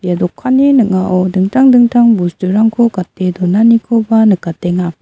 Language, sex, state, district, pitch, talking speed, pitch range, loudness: Garo, female, Meghalaya, South Garo Hills, 190 Hz, 110 wpm, 180-230 Hz, -11 LUFS